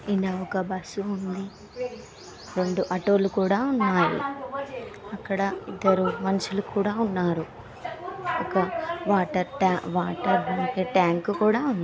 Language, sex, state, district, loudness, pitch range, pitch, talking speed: Telugu, female, Andhra Pradesh, Srikakulam, -26 LUFS, 185-215 Hz, 195 Hz, 95 wpm